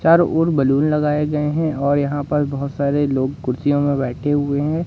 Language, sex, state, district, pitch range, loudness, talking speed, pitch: Hindi, male, Madhya Pradesh, Katni, 140-150 Hz, -19 LUFS, 210 wpm, 145 Hz